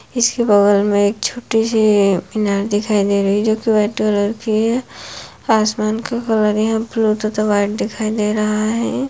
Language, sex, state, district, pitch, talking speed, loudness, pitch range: Hindi, female, Bihar, Purnia, 215 Hz, 185 wpm, -16 LUFS, 205-225 Hz